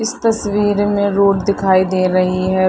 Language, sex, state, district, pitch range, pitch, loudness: Hindi, female, Bihar, Madhepura, 185-205 Hz, 200 Hz, -15 LUFS